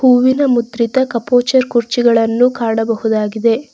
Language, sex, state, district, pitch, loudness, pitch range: Kannada, female, Karnataka, Bangalore, 235 Hz, -14 LUFS, 230-255 Hz